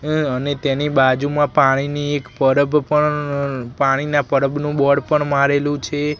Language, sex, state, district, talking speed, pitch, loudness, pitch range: Gujarati, male, Gujarat, Gandhinagar, 135 wpm, 145 Hz, -18 LUFS, 135-150 Hz